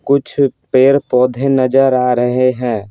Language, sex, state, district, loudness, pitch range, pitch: Hindi, male, Bihar, Patna, -13 LUFS, 125-135 Hz, 130 Hz